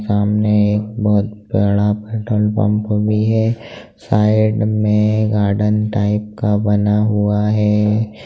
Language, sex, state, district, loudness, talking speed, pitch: Hindi, male, Bihar, Jahanabad, -16 LUFS, 115 wpm, 105 Hz